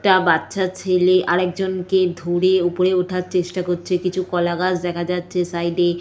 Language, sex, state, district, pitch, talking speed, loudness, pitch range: Bengali, female, West Bengal, Jalpaiguri, 180 Hz, 190 wpm, -19 LUFS, 175-185 Hz